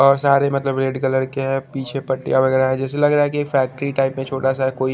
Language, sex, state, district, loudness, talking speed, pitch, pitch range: Hindi, male, Chandigarh, Chandigarh, -19 LUFS, 255 wpm, 135 Hz, 130-140 Hz